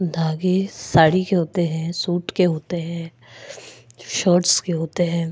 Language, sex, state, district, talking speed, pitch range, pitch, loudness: Hindi, female, Goa, North and South Goa, 145 wpm, 160-180 Hz, 170 Hz, -20 LUFS